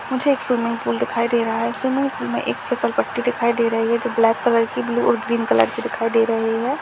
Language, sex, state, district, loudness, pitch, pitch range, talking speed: Hindi, male, Uttarakhand, Tehri Garhwal, -20 LUFS, 235 Hz, 230-245 Hz, 270 wpm